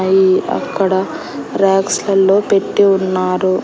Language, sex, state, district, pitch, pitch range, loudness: Telugu, female, Andhra Pradesh, Annamaya, 190 Hz, 185-195 Hz, -14 LUFS